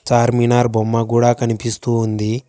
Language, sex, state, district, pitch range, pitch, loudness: Telugu, male, Telangana, Hyderabad, 115-120 Hz, 115 Hz, -16 LUFS